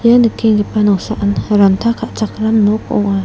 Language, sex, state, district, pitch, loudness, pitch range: Garo, female, Meghalaya, South Garo Hills, 215 Hz, -14 LUFS, 205-225 Hz